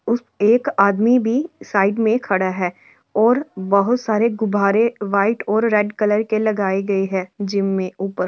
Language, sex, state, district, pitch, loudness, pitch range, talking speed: Marwari, female, Rajasthan, Churu, 210 Hz, -18 LUFS, 195-225 Hz, 165 wpm